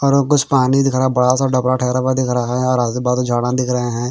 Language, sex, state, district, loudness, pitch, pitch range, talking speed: Hindi, male, Bihar, Patna, -16 LUFS, 125 Hz, 125-130 Hz, 320 wpm